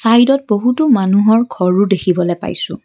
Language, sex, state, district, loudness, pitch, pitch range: Assamese, female, Assam, Kamrup Metropolitan, -13 LUFS, 210 Hz, 190-240 Hz